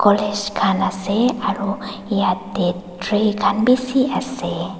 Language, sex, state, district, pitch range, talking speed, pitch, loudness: Nagamese, female, Nagaland, Dimapur, 195-215 Hz, 100 wpm, 205 Hz, -20 LUFS